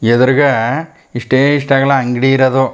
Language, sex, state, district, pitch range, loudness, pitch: Kannada, male, Karnataka, Chamarajanagar, 125-140 Hz, -12 LUFS, 135 Hz